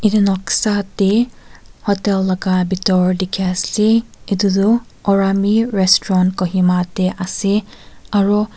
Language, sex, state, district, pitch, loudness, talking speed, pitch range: Nagamese, female, Nagaland, Kohima, 195 Hz, -16 LUFS, 105 wpm, 185-210 Hz